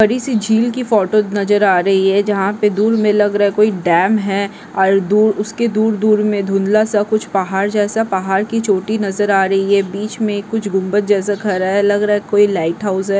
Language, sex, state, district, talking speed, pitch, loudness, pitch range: Hindi, female, Maharashtra, Dhule, 220 wpm, 205 Hz, -15 LUFS, 195-215 Hz